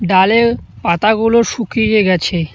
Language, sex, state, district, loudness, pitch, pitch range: Bengali, male, West Bengal, Cooch Behar, -13 LUFS, 215 Hz, 185-230 Hz